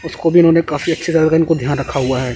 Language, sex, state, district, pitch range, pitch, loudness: Hindi, male, Chandigarh, Chandigarh, 140-165 Hz, 160 Hz, -15 LUFS